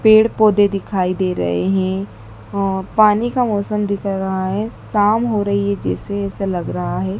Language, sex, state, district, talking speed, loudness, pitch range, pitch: Hindi, female, Madhya Pradesh, Dhar, 165 wpm, -18 LUFS, 185-210 Hz, 200 Hz